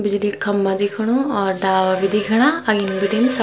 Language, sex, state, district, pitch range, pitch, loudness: Garhwali, female, Uttarakhand, Tehri Garhwal, 195-225 Hz, 205 Hz, -18 LUFS